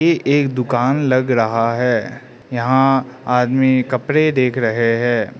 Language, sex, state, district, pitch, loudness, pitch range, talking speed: Hindi, male, Arunachal Pradesh, Lower Dibang Valley, 125 Hz, -16 LUFS, 120-135 Hz, 135 wpm